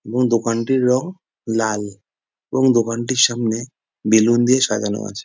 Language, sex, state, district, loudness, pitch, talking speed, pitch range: Bengali, male, West Bengal, Jalpaiguri, -18 LUFS, 115 Hz, 125 wpm, 110-125 Hz